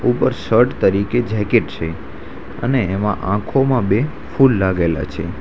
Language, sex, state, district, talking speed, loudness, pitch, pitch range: Gujarati, male, Gujarat, Valsad, 135 wpm, -18 LUFS, 100 Hz, 80-120 Hz